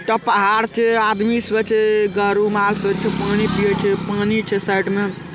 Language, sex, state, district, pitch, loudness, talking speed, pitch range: Hindi, male, Bihar, Araria, 205 Hz, -18 LUFS, 145 wpm, 200-220 Hz